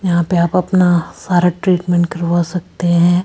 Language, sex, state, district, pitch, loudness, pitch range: Hindi, female, Rajasthan, Jaipur, 175 Hz, -15 LUFS, 170-180 Hz